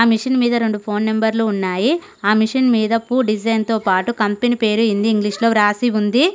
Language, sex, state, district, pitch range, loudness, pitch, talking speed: Telugu, female, Telangana, Mahabubabad, 210-240 Hz, -17 LUFS, 225 Hz, 190 wpm